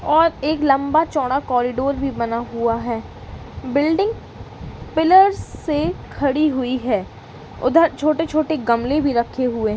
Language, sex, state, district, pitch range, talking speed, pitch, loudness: Hindi, female, Uttar Pradesh, Varanasi, 245-310 Hz, 135 wpm, 280 Hz, -19 LUFS